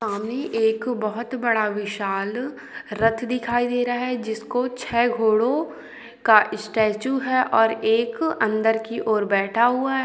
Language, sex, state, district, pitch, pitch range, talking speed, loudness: Hindi, female, Chhattisgarh, Balrampur, 225 Hz, 215-245 Hz, 145 wpm, -22 LUFS